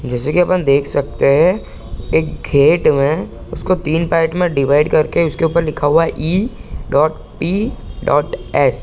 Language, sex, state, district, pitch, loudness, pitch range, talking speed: Hindi, male, Bihar, Sitamarhi, 165 Hz, -15 LUFS, 145-175 Hz, 170 wpm